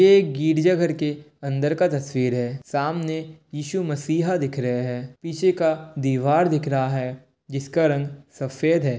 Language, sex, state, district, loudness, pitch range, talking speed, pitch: Hindi, male, Bihar, Kishanganj, -23 LUFS, 135-160 Hz, 160 wpm, 150 Hz